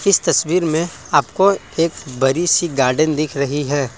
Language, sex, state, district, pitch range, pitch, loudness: Hindi, male, Assam, Kamrup Metropolitan, 140-170 Hz, 155 Hz, -17 LUFS